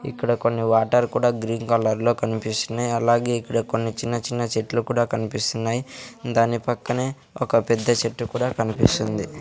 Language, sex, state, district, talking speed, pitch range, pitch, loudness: Telugu, male, Andhra Pradesh, Sri Satya Sai, 155 wpm, 115-120 Hz, 115 Hz, -23 LUFS